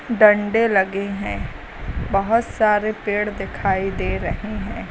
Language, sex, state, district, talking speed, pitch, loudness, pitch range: Hindi, female, Uttar Pradesh, Lucknow, 120 wpm, 205 Hz, -20 LUFS, 195-215 Hz